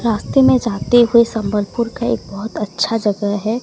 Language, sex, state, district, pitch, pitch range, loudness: Hindi, female, Odisha, Sambalpur, 220 Hz, 205-235 Hz, -16 LUFS